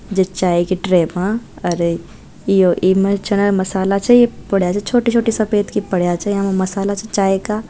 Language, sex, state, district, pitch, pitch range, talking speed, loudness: Marwari, female, Rajasthan, Nagaur, 195 Hz, 185-205 Hz, 205 wpm, -16 LUFS